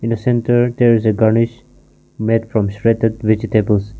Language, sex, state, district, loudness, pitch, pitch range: English, male, Nagaland, Kohima, -16 LUFS, 115 Hz, 110-115 Hz